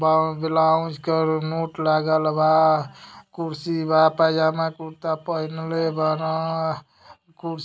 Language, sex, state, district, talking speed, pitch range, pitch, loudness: Hindi, male, Uttar Pradesh, Deoria, 110 wpm, 155-160 Hz, 160 Hz, -22 LUFS